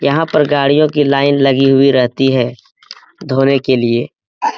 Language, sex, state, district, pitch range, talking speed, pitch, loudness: Hindi, male, Bihar, Jamui, 130-145 Hz, 170 wpm, 135 Hz, -13 LUFS